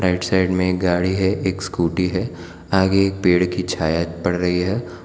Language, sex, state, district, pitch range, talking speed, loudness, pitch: Hindi, male, Gujarat, Valsad, 90-95 Hz, 200 wpm, -20 LUFS, 90 Hz